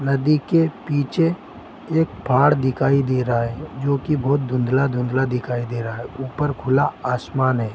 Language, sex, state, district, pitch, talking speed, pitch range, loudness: Hindi, male, Chhattisgarh, Bilaspur, 135 Hz, 170 wpm, 125-145 Hz, -21 LUFS